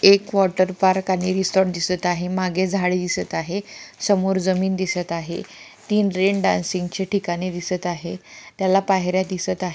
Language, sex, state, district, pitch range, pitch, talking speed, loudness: Marathi, female, Maharashtra, Pune, 180-195 Hz, 185 Hz, 160 wpm, -21 LUFS